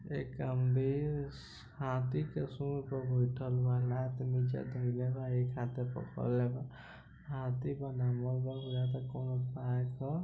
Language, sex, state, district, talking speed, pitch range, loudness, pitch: Bhojpuri, male, Bihar, East Champaran, 140 wpm, 125-135 Hz, -36 LUFS, 130 Hz